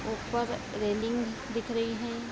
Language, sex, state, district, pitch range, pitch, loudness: Hindi, female, Bihar, Vaishali, 230-235 Hz, 230 Hz, -32 LUFS